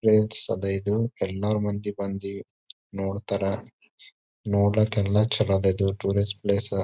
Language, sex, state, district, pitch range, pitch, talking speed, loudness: Kannada, male, Karnataka, Bijapur, 100-105 Hz, 100 Hz, 115 wpm, -24 LUFS